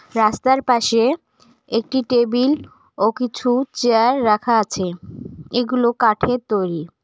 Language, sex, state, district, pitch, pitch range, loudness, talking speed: Bengali, female, West Bengal, Cooch Behar, 240 Hz, 220-250 Hz, -19 LUFS, 100 wpm